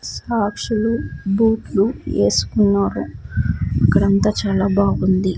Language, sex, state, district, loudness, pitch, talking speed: Telugu, female, Andhra Pradesh, Sri Satya Sai, -18 LUFS, 190 Hz, 80 wpm